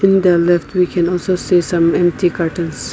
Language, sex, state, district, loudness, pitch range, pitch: English, female, Nagaland, Kohima, -15 LUFS, 170-180 Hz, 175 Hz